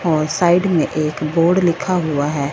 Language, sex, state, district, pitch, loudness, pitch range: Hindi, female, Punjab, Fazilka, 160 Hz, -17 LUFS, 155-175 Hz